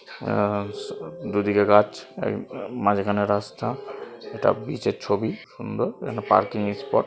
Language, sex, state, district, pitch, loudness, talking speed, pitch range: Bengali, male, West Bengal, Malda, 105 Hz, -24 LUFS, 125 wpm, 100-105 Hz